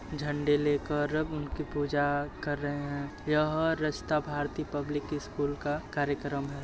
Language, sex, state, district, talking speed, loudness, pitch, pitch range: Hindi, male, Uttar Pradesh, Muzaffarnagar, 165 wpm, -31 LUFS, 145 Hz, 145-150 Hz